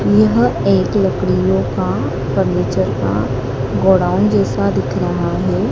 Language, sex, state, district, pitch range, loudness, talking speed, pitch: Hindi, female, Madhya Pradesh, Dhar, 100-130 Hz, -16 LUFS, 115 wpm, 115 Hz